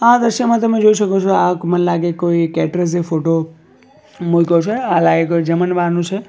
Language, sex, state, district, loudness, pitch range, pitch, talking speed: Gujarati, male, Gujarat, Valsad, -15 LUFS, 170-200 Hz, 175 Hz, 160 wpm